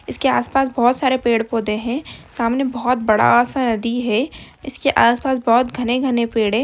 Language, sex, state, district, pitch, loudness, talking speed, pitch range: Hindi, female, Bihar, Jahanabad, 245 Hz, -18 LUFS, 165 wpm, 230-260 Hz